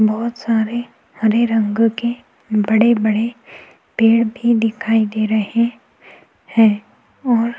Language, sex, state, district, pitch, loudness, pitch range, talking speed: Hindi, female, Goa, North and South Goa, 225 Hz, -17 LUFS, 220-235 Hz, 110 wpm